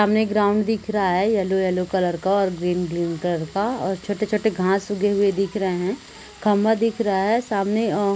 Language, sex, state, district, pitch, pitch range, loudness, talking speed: Hindi, female, Chhattisgarh, Korba, 200 Hz, 185-215 Hz, -22 LUFS, 215 wpm